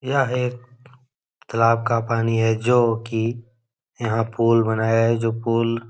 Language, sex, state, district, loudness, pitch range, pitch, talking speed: Hindi, male, Bihar, Jahanabad, -21 LUFS, 115-125 Hz, 115 Hz, 155 wpm